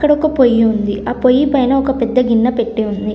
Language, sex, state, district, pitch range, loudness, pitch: Telugu, female, Telangana, Komaram Bheem, 225-270 Hz, -14 LUFS, 245 Hz